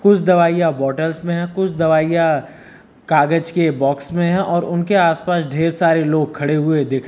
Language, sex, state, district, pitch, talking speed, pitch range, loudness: Hindi, male, Uttar Pradesh, Lucknow, 165 Hz, 185 wpm, 155-175 Hz, -17 LUFS